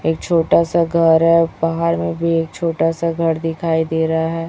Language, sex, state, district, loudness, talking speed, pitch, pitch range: Hindi, female, Chhattisgarh, Raipur, -17 LUFS, 225 wpm, 165 Hz, 160-165 Hz